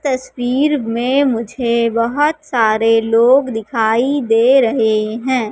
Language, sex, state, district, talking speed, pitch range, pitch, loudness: Hindi, female, Madhya Pradesh, Katni, 110 wpm, 225-270 Hz, 235 Hz, -15 LUFS